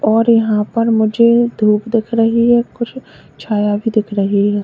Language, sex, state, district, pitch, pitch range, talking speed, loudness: Hindi, female, Uttar Pradesh, Lalitpur, 225 Hz, 210-235 Hz, 180 wpm, -14 LUFS